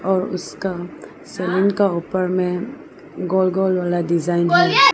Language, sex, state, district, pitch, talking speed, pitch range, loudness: Hindi, female, Arunachal Pradesh, Lower Dibang Valley, 185 Hz, 135 wpm, 175-200 Hz, -19 LUFS